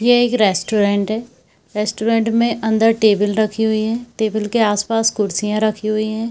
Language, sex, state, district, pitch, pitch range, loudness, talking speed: Hindi, female, Bihar, Purnia, 220 Hz, 210-225 Hz, -17 LUFS, 170 wpm